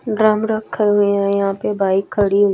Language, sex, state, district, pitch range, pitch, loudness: Hindi, female, Chhattisgarh, Raipur, 200-215 Hz, 205 Hz, -17 LUFS